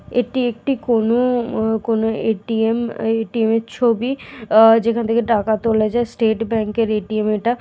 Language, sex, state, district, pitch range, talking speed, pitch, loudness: Bengali, female, West Bengal, Dakshin Dinajpur, 220-235 Hz, 165 wpm, 225 Hz, -18 LUFS